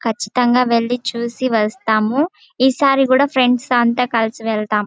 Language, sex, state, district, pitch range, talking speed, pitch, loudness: Telugu, female, Andhra Pradesh, Chittoor, 225-255 Hz, 125 wpm, 240 Hz, -16 LUFS